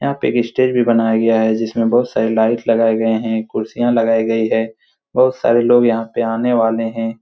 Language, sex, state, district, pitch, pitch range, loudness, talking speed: Hindi, male, Bihar, Supaul, 115 Hz, 115-120 Hz, -16 LUFS, 215 wpm